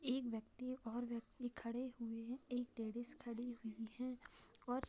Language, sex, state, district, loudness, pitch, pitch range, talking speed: Hindi, female, Bihar, Gaya, -47 LUFS, 245 Hz, 230-255 Hz, 160 wpm